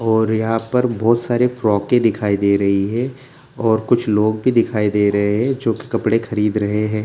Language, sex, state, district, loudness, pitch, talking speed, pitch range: Hindi, male, Bihar, Gaya, -17 LUFS, 110 Hz, 215 wpm, 105-120 Hz